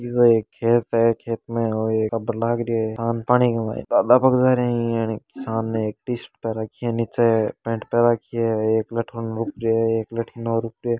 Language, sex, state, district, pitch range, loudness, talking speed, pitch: Hindi, male, Rajasthan, Churu, 115-120 Hz, -22 LUFS, 215 wpm, 115 Hz